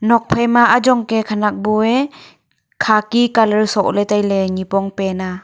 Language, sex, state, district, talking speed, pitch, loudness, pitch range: Wancho, female, Arunachal Pradesh, Longding, 155 wpm, 215 Hz, -15 LUFS, 195-235 Hz